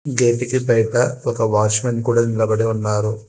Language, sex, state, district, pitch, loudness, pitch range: Telugu, male, Telangana, Hyderabad, 115 Hz, -18 LUFS, 110-120 Hz